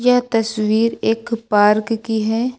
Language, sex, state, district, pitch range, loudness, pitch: Hindi, female, Uttar Pradesh, Lucknow, 215-235 Hz, -17 LUFS, 225 Hz